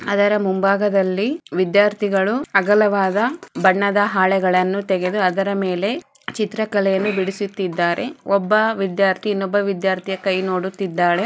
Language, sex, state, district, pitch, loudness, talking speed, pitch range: Kannada, female, Karnataka, Chamarajanagar, 195 Hz, -19 LUFS, 90 wpm, 190-205 Hz